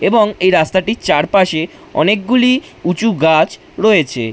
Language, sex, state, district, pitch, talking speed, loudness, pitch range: Bengali, male, West Bengal, Jhargram, 190 Hz, 110 wpm, -14 LUFS, 160-220 Hz